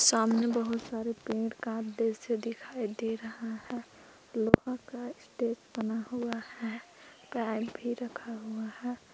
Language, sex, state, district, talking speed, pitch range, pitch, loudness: Hindi, female, Jharkhand, Palamu, 140 wpm, 225-235 Hz, 230 Hz, -33 LUFS